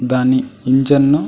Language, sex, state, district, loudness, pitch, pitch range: Telugu, male, Andhra Pradesh, Anantapur, -15 LUFS, 130 Hz, 130-140 Hz